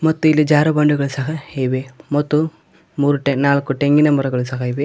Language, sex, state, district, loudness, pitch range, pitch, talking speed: Kannada, male, Karnataka, Koppal, -17 LUFS, 135-150 Hz, 145 Hz, 160 wpm